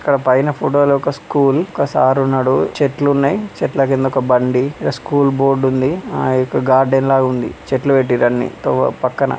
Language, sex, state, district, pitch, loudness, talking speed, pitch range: Telugu, male, Telangana, Karimnagar, 135 Hz, -15 LUFS, 170 wpm, 130-140 Hz